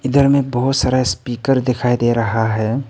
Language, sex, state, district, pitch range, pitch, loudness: Hindi, male, Arunachal Pradesh, Papum Pare, 120-135 Hz, 125 Hz, -17 LUFS